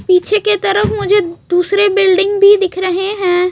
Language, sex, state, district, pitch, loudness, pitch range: Hindi, female, Chhattisgarh, Raipur, 395 Hz, -12 LUFS, 365-405 Hz